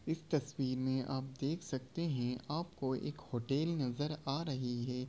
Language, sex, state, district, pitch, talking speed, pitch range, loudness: Hindi, male, Bihar, Gaya, 135 Hz, 175 wpm, 130-155 Hz, -38 LUFS